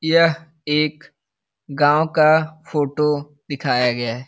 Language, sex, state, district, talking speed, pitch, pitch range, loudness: Hindi, male, Bihar, Lakhisarai, 110 wpm, 150 Hz, 140-155 Hz, -19 LUFS